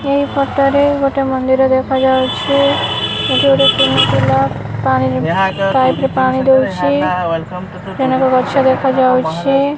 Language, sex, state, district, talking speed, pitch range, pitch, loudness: Odia, female, Odisha, Khordha, 110 wpm, 165-270 Hz, 260 Hz, -13 LUFS